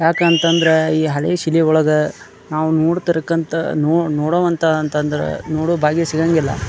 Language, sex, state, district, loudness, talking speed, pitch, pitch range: Kannada, male, Karnataka, Dharwad, -16 LUFS, 115 wpm, 160 Hz, 155-165 Hz